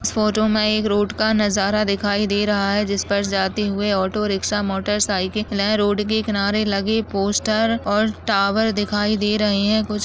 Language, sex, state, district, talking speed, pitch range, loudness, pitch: Hindi, female, Bihar, Purnia, 195 wpm, 200-215 Hz, -20 LUFS, 210 Hz